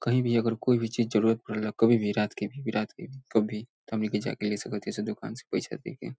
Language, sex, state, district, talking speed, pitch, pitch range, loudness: Bhojpuri, male, Bihar, Saran, 290 wpm, 110 Hz, 105-120 Hz, -29 LUFS